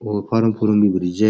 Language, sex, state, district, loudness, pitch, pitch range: Rajasthani, male, Rajasthan, Nagaur, -18 LUFS, 105 Hz, 105-110 Hz